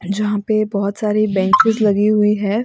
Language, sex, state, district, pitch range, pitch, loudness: Hindi, female, Maharashtra, Mumbai Suburban, 200-215 Hz, 210 Hz, -16 LUFS